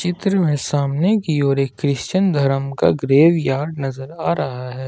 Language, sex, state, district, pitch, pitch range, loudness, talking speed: Hindi, male, Jharkhand, Ranchi, 140 Hz, 135-170 Hz, -18 LUFS, 170 wpm